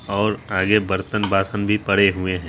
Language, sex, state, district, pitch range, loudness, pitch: Hindi, female, Bihar, Araria, 95-105 Hz, -20 LUFS, 100 Hz